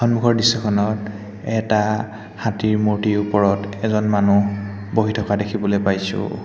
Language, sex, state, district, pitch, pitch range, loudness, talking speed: Assamese, male, Assam, Hailakandi, 105 Hz, 100-110 Hz, -19 LUFS, 120 wpm